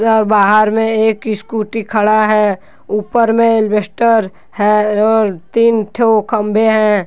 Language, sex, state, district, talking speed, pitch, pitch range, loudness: Hindi, male, Jharkhand, Deoghar, 125 wpm, 215 Hz, 210-225 Hz, -13 LUFS